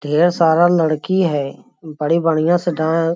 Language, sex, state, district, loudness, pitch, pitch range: Magahi, male, Bihar, Lakhisarai, -16 LUFS, 165 Hz, 155-175 Hz